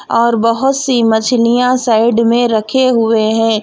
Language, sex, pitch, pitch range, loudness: Hindi, female, 230 Hz, 225-250 Hz, -12 LUFS